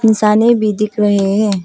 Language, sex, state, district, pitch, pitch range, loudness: Hindi, female, Arunachal Pradesh, Papum Pare, 210 Hz, 205-220 Hz, -13 LUFS